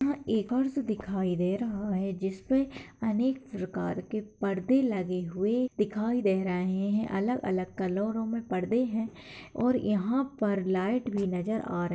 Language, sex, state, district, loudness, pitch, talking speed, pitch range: Hindi, female, Bihar, Lakhisarai, -30 LUFS, 210 Hz, 170 wpm, 190-235 Hz